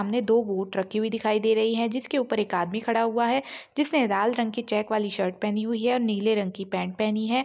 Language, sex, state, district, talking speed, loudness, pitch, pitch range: Hindi, female, Chhattisgarh, Rajnandgaon, 280 wpm, -26 LUFS, 220 Hz, 210-235 Hz